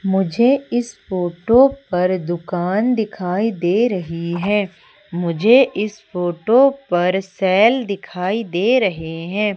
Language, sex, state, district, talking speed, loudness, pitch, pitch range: Hindi, female, Madhya Pradesh, Umaria, 115 wpm, -18 LUFS, 195 Hz, 175-230 Hz